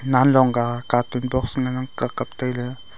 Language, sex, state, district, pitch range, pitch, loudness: Wancho, male, Arunachal Pradesh, Longding, 120-130 Hz, 125 Hz, -22 LUFS